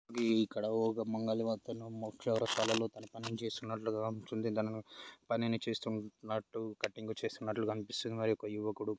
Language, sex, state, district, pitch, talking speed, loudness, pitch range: Telugu, male, Andhra Pradesh, Srikakulam, 110 Hz, 120 wpm, -37 LUFS, 110-115 Hz